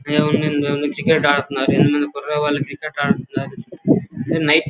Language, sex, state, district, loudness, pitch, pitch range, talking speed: Telugu, male, Andhra Pradesh, Guntur, -18 LUFS, 145 Hz, 145-150 Hz, 115 wpm